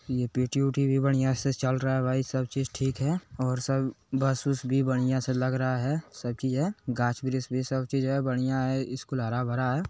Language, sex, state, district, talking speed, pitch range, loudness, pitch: Hindi, male, Bihar, Lakhisarai, 230 wpm, 130-135 Hz, -28 LUFS, 130 Hz